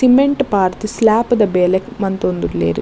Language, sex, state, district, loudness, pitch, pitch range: Tulu, female, Karnataka, Dakshina Kannada, -15 LUFS, 200 Hz, 180-235 Hz